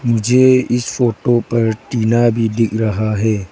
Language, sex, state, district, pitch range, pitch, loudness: Hindi, female, Arunachal Pradesh, Lower Dibang Valley, 110-120 Hz, 115 Hz, -15 LUFS